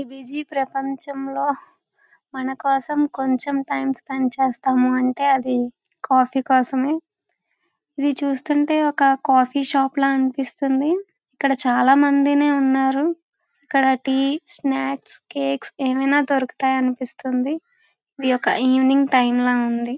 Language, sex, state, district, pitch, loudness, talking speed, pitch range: Telugu, female, Andhra Pradesh, Visakhapatnam, 270 Hz, -20 LUFS, 105 wpm, 260-280 Hz